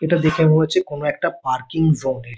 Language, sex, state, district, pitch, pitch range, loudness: Bengali, male, West Bengal, Kolkata, 155 Hz, 130-160 Hz, -19 LUFS